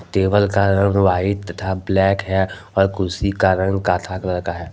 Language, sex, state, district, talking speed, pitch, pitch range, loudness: Hindi, male, Jharkhand, Deoghar, 190 wpm, 95 Hz, 95-100 Hz, -19 LUFS